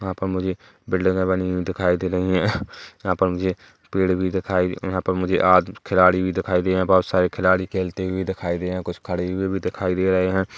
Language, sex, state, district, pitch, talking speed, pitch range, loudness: Hindi, male, Chhattisgarh, Kabirdham, 95 Hz, 245 wpm, 90-95 Hz, -22 LUFS